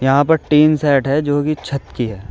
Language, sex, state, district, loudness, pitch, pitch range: Hindi, male, Uttar Pradesh, Shamli, -16 LUFS, 145 Hz, 135-150 Hz